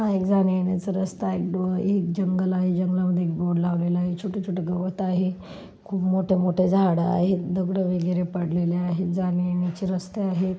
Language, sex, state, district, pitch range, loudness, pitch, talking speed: Marathi, female, Maharashtra, Solapur, 180-190 Hz, -24 LUFS, 185 Hz, 175 wpm